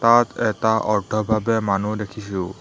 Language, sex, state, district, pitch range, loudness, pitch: Assamese, male, Assam, Hailakandi, 100-110 Hz, -21 LUFS, 110 Hz